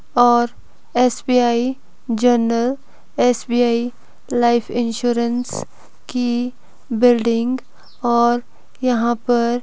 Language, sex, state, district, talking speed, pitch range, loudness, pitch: Hindi, female, Himachal Pradesh, Shimla, 70 wpm, 235-245 Hz, -18 LUFS, 240 Hz